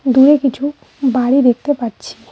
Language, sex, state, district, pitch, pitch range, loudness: Bengali, female, West Bengal, Cooch Behar, 270 Hz, 250-285 Hz, -14 LUFS